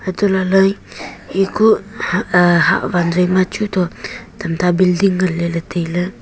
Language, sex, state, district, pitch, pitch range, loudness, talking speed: Wancho, female, Arunachal Pradesh, Longding, 185 Hz, 175-195 Hz, -16 LUFS, 155 wpm